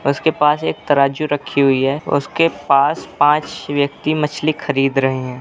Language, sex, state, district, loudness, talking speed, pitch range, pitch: Hindi, male, Uttar Pradesh, Jalaun, -17 LUFS, 165 wpm, 135-150 Hz, 145 Hz